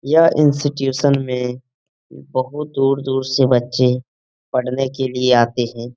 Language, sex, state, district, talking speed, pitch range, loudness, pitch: Hindi, male, Bihar, Lakhisarai, 130 wpm, 125-135 Hz, -18 LUFS, 130 Hz